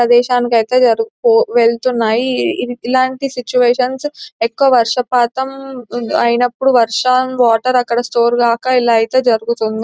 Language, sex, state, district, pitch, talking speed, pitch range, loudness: Telugu, female, Telangana, Nalgonda, 245 Hz, 105 wpm, 235-255 Hz, -14 LUFS